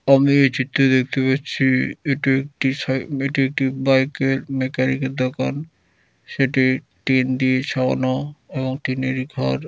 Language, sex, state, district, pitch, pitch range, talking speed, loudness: Bengali, male, West Bengal, Dakshin Dinajpur, 130 Hz, 130-135 Hz, 120 wpm, -20 LUFS